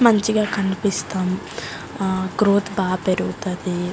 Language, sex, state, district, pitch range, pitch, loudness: Telugu, female, Andhra Pradesh, Guntur, 185-205 Hz, 190 Hz, -22 LUFS